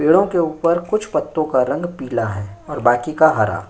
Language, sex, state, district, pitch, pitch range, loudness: Hindi, male, Uttar Pradesh, Jyotiba Phule Nagar, 150 Hz, 115-170 Hz, -18 LUFS